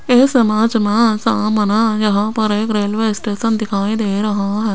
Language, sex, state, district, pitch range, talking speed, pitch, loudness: Hindi, female, Rajasthan, Jaipur, 210-225 Hz, 115 wpm, 215 Hz, -16 LUFS